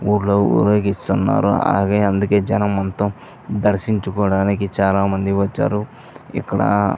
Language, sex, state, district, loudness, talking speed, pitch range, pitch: Telugu, male, Andhra Pradesh, Visakhapatnam, -18 LUFS, 105 wpm, 95-105 Hz, 100 Hz